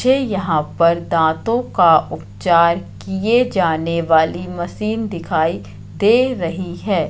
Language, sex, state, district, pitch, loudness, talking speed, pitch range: Hindi, female, Madhya Pradesh, Katni, 175 Hz, -17 LUFS, 120 wpm, 165-210 Hz